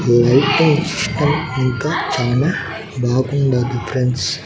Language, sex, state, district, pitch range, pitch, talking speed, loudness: Telugu, male, Andhra Pradesh, Annamaya, 125-155 Hz, 130 Hz, 110 wpm, -17 LUFS